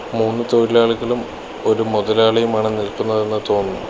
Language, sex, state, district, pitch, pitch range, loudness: Malayalam, male, Kerala, Kollam, 110 Hz, 110-115 Hz, -18 LUFS